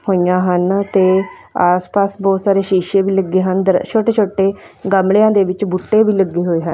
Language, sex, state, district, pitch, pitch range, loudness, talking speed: Punjabi, female, Punjab, Fazilka, 195 Hz, 185-200 Hz, -15 LUFS, 180 wpm